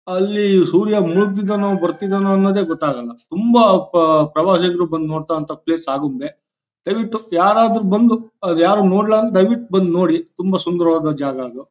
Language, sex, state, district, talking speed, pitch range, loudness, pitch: Kannada, male, Karnataka, Shimoga, 150 wpm, 165-205 Hz, -16 LUFS, 185 Hz